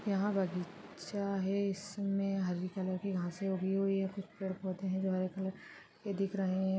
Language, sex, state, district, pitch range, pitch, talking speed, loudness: Hindi, female, Chhattisgarh, Balrampur, 185-195 Hz, 195 Hz, 205 wpm, -36 LUFS